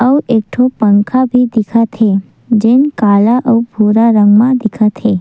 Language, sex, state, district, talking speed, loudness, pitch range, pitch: Chhattisgarhi, female, Chhattisgarh, Sukma, 185 wpm, -11 LUFS, 210-250 Hz, 225 Hz